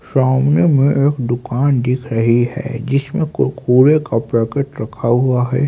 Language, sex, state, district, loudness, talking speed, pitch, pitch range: Hindi, male, Haryana, Rohtak, -16 LUFS, 150 wpm, 130 Hz, 120-140 Hz